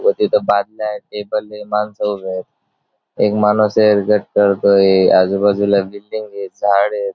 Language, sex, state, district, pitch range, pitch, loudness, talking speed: Marathi, male, Maharashtra, Dhule, 100-105 Hz, 105 Hz, -16 LUFS, 150 wpm